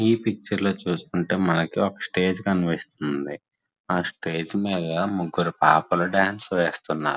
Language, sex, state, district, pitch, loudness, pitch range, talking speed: Telugu, male, Andhra Pradesh, Srikakulam, 90 Hz, -24 LUFS, 85-100 Hz, 125 wpm